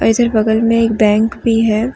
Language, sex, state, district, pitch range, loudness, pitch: Hindi, female, Jharkhand, Deoghar, 220-230 Hz, -13 LUFS, 225 Hz